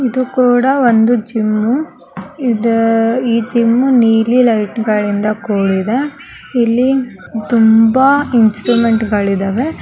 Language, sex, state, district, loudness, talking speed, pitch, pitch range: Kannada, male, Karnataka, Gulbarga, -13 LUFS, 90 wpm, 230 Hz, 220-250 Hz